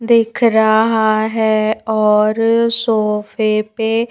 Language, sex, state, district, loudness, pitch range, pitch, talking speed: Hindi, female, Madhya Pradesh, Bhopal, -14 LUFS, 215-230 Hz, 220 Hz, 85 wpm